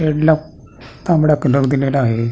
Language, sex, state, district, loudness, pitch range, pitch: Marathi, male, Maharashtra, Pune, -15 LUFS, 130-155 Hz, 140 Hz